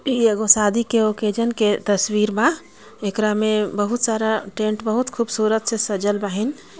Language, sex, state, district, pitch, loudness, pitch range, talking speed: Bhojpuri, female, Jharkhand, Palamu, 215 Hz, -20 LUFS, 210-230 Hz, 160 wpm